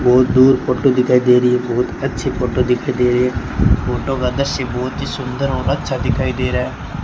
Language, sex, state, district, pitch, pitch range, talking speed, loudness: Hindi, male, Rajasthan, Bikaner, 125 Hz, 125-130 Hz, 220 wpm, -17 LUFS